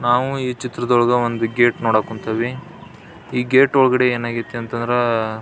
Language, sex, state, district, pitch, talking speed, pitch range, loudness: Kannada, male, Karnataka, Belgaum, 120 Hz, 145 wpm, 115-125 Hz, -18 LUFS